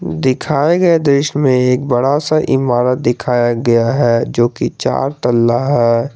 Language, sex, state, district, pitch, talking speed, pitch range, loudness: Hindi, male, Jharkhand, Garhwa, 125 Hz, 155 wpm, 120-140 Hz, -14 LUFS